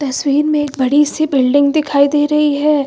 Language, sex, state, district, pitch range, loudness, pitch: Hindi, female, Uttar Pradesh, Lucknow, 280-300 Hz, -14 LUFS, 290 Hz